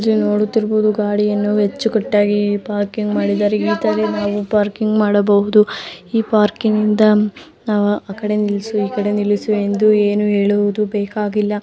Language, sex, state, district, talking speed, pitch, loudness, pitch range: Kannada, female, Karnataka, Dharwad, 125 wpm, 210 Hz, -16 LUFS, 205-215 Hz